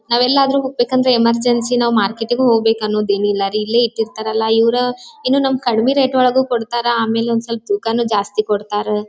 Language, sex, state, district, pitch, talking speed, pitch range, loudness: Kannada, female, Karnataka, Dharwad, 230 Hz, 160 wpm, 220-245 Hz, -16 LUFS